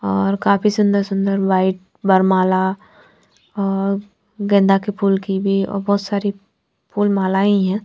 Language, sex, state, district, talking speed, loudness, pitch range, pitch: Hindi, female, Bihar, Patna, 140 wpm, -18 LUFS, 190-200 Hz, 195 Hz